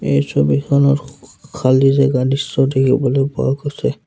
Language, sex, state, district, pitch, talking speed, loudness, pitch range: Assamese, male, Assam, Sonitpur, 135 Hz, 145 wpm, -16 LUFS, 130-140 Hz